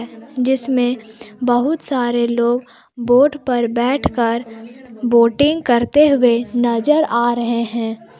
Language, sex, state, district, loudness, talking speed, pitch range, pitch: Hindi, female, Jharkhand, Palamu, -16 LUFS, 100 wpm, 235-255 Hz, 240 Hz